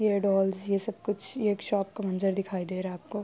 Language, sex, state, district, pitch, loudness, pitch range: Urdu, female, Andhra Pradesh, Anantapur, 195 Hz, -29 LUFS, 190-205 Hz